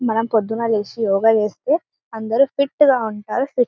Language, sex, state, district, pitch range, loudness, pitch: Telugu, female, Telangana, Karimnagar, 220-265 Hz, -19 LUFS, 225 Hz